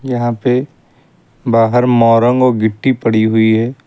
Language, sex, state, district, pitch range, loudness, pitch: Hindi, male, Uttar Pradesh, Lucknow, 115-130 Hz, -13 LUFS, 120 Hz